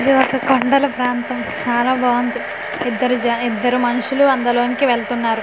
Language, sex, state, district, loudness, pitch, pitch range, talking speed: Telugu, female, Andhra Pradesh, Manyam, -17 LUFS, 245 Hz, 240-265 Hz, 130 wpm